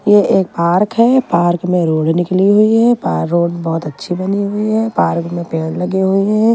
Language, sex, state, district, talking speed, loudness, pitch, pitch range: Hindi, female, Delhi, New Delhi, 210 wpm, -14 LUFS, 185 Hz, 170-210 Hz